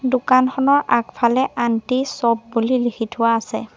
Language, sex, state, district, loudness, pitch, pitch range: Assamese, female, Assam, Sonitpur, -18 LUFS, 240 Hz, 230-255 Hz